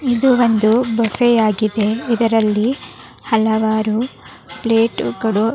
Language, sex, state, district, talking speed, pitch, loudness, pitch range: Kannada, female, Karnataka, Raichur, 85 wpm, 225 Hz, -16 LUFS, 220-235 Hz